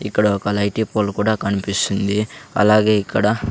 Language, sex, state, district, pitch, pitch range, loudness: Telugu, male, Andhra Pradesh, Sri Satya Sai, 105 Hz, 100-105 Hz, -18 LUFS